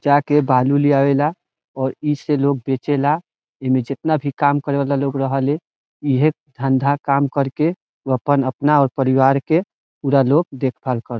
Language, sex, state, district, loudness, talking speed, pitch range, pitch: Bhojpuri, male, Bihar, Saran, -18 LUFS, 180 wpm, 135-145 Hz, 140 Hz